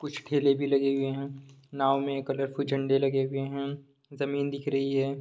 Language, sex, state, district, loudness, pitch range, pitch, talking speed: Hindi, male, Bihar, Sitamarhi, -29 LUFS, 135-140 Hz, 140 Hz, 195 wpm